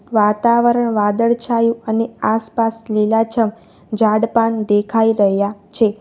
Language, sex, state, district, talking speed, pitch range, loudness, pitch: Gujarati, female, Gujarat, Valsad, 90 wpm, 215-230 Hz, -16 LUFS, 225 Hz